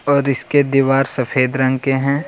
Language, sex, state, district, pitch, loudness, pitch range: Hindi, male, Jharkhand, Deoghar, 135 Hz, -16 LUFS, 130-140 Hz